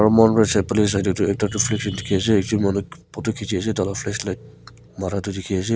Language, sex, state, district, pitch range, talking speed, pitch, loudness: Nagamese, male, Nagaland, Kohima, 95-110 Hz, 240 wpm, 100 Hz, -21 LUFS